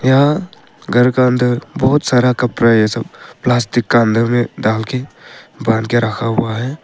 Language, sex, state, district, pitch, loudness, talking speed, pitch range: Hindi, male, Arunachal Pradesh, Papum Pare, 120 Hz, -15 LUFS, 175 wpm, 115-130 Hz